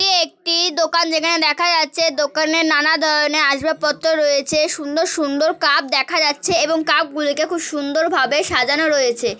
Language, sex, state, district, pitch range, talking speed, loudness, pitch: Bengali, female, West Bengal, Malda, 300-335 Hz, 155 wpm, -16 LUFS, 315 Hz